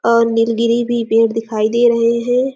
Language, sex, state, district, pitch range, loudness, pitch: Hindi, female, Chhattisgarh, Sarguja, 230-240 Hz, -15 LUFS, 230 Hz